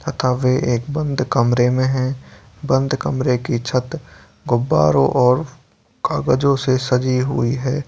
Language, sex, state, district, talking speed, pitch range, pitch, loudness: Hindi, male, Bihar, Purnia, 145 wpm, 125-135 Hz, 130 Hz, -18 LUFS